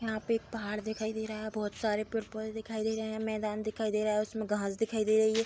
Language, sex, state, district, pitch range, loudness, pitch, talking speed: Hindi, female, Bihar, Bhagalpur, 215-220 Hz, -33 LUFS, 220 Hz, 285 wpm